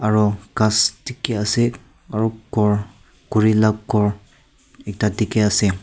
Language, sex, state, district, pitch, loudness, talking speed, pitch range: Nagamese, male, Nagaland, Kohima, 105 Hz, -19 LUFS, 125 wpm, 105-110 Hz